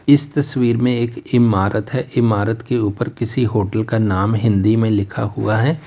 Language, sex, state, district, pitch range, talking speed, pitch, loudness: Hindi, male, Uttar Pradesh, Lalitpur, 105-125 Hz, 185 wpm, 115 Hz, -18 LUFS